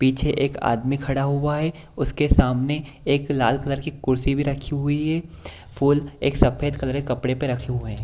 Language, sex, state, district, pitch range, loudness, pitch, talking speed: Hindi, male, Bihar, Kishanganj, 130-145 Hz, -23 LUFS, 140 Hz, 200 wpm